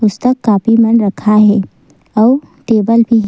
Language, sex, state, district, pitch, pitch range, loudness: Chhattisgarhi, female, Chhattisgarh, Sukma, 225 Hz, 210-230 Hz, -11 LUFS